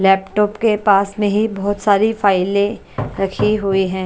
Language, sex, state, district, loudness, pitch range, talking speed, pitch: Hindi, female, Punjab, Kapurthala, -17 LUFS, 195-210 Hz, 175 wpm, 200 Hz